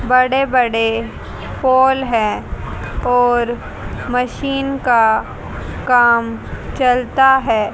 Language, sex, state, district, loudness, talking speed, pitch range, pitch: Hindi, female, Haryana, Jhajjar, -16 LUFS, 70 wpm, 230-265 Hz, 245 Hz